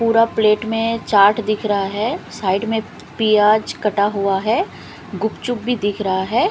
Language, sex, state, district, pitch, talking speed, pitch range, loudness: Hindi, female, Punjab, Fazilka, 215 Hz, 165 wpm, 205-225 Hz, -18 LUFS